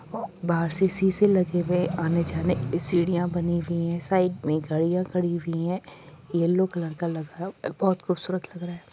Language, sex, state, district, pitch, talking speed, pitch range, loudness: Hindi, female, Uttar Pradesh, Jyotiba Phule Nagar, 175 Hz, 195 wpm, 170-180 Hz, -26 LUFS